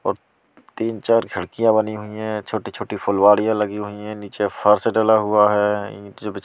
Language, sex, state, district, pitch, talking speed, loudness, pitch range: Hindi, male, Delhi, New Delhi, 105 Hz, 170 wpm, -19 LUFS, 105-110 Hz